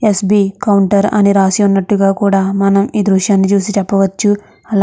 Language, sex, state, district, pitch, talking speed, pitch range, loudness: Telugu, female, Andhra Pradesh, Krishna, 200 Hz, 175 wpm, 195-205 Hz, -12 LUFS